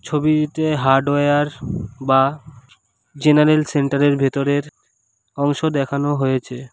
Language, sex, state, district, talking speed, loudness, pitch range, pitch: Bengali, male, West Bengal, Alipurduar, 90 wpm, -18 LUFS, 135-150 Hz, 140 Hz